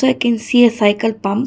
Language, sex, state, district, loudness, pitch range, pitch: English, female, Karnataka, Bangalore, -15 LUFS, 220-245 Hz, 230 Hz